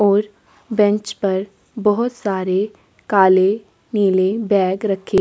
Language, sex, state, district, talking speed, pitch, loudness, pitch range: Hindi, female, Chhattisgarh, Korba, 115 wpm, 200 Hz, -18 LUFS, 190-210 Hz